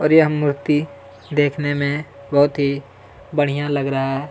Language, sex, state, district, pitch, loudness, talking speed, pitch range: Hindi, male, Chhattisgarh, Kabirdham, 145 Hz, -20 LUFS, 155 wpm, 140-145 Hz